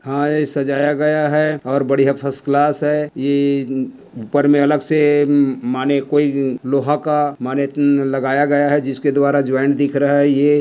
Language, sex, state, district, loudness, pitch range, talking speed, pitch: Hindi, male, Chhattisgarh, Kabirdham, -16 LUFS, 135-145 Hz, 185 wpm, 140 Hz